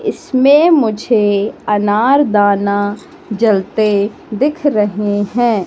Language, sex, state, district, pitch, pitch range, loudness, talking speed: Hindi, female, Madhya Pradesh, Katni, 215 Hz, 205-265 Hz, -13 LUFS, 75 wpm